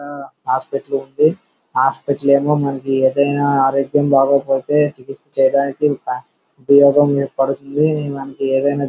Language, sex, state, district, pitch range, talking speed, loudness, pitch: Telugu, male, Andhra Pradesh, Srikakulam, 135-145 Hz, 95 wpm, -16 LUFS, 140 Hz